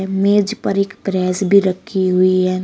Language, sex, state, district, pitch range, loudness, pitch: Hindi, female, Uttar Pradesh, Shamli, 185-200 Hz, -16 LUFS, 190 Hz